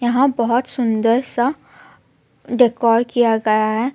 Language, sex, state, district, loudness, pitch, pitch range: Hindi, female, Jharkhand, Ranchi, -17 LUFS, 240 Hz, 230-245 Hz